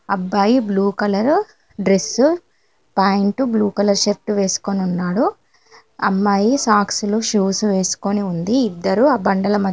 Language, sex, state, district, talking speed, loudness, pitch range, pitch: Telugu, female, Telangana, Karimnagar, 115 wpm, -18 LUFS, 195-225 Hz, 205 Hz